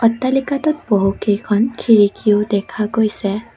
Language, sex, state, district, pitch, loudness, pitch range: Assamese, female, Assam, Kamrup Metropolitan, 215 Hz, -16 LUFS, 205-235 Hz